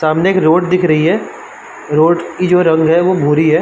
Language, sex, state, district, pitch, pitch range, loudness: Hindi, male, Uttar Pradesh, Varanasi, 170 Hz, 160-180 Hz, -12 LUFS